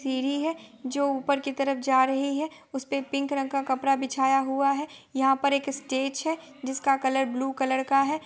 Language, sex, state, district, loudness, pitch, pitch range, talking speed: Hindi, female, Bihar, Gopalganj, -26 LUFS, 275 Hz, 265-280 Hz, 205 wpm